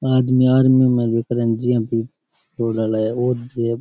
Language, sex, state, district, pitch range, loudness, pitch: Rajasthani, male, Rajasthan, Nagaur, 115-130 Hz, -18 LUFS, 120 Hz